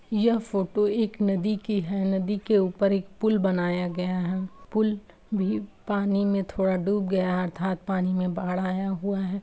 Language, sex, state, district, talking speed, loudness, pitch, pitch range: Hindi, female, Uttar Pradesh, Jalaun, 185 wpm, -26 LUFS, 195 Hz, 185-205 Hz